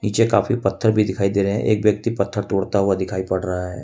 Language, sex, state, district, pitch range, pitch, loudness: Hindi, male, Jharkhand, Ranchi, 95-110 Hz, 100 Hz, -20 LUFS